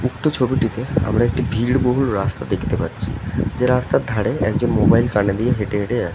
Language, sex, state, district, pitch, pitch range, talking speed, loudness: Bengali, male, West Bengal, North 24 Parganas, 120 Hz, 105-125 Hz, 175 wpm, -19 LUFS